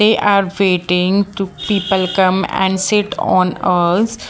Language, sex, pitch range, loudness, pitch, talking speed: English, female, 185-200 Hz, -15 LUFS, 190 Hz, 140 wpm